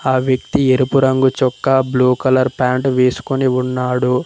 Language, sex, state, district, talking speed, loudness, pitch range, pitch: Telugu, male, Telangana, Mahabubabad, 140 wpm, -15 LUFS, 125-130 Hz, 130 Hz